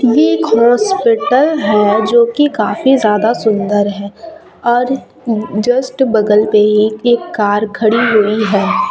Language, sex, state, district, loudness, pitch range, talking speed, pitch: Hindi, female, Chhattisgarh, Raipur, -12 LUFS, 210-255 Hz, 130 wpm, 220 Hz